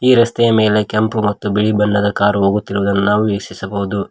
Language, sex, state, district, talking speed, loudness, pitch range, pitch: Kannada, male, Karnataka, Koppal, 160 wpm, -15 LUFS, 100-110 Hz, 105 Hz